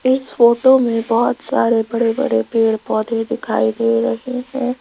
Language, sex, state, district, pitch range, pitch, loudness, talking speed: Hindi, female, Rajasthan, Jaipur, 220-250 Hz, 230 Hz, -17 LUFS, 160 wpm